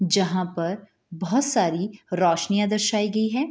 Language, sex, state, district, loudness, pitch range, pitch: Hindi, female, Bihar, Gopalganj, -23 LUFS, 180-215 Hz, 200 Hz